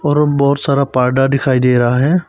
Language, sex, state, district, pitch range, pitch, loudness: Hindi, male, Arunachal Pradesh, Papum Pare, 125-145 Hz, 140 Hz, -13 LUFS